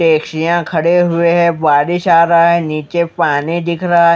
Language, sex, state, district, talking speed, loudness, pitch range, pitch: Hindi, male, Maharashtra, Mumbai Suburban, 190 wpm, -13 LUFS, 160-170 Hz, 170 Hz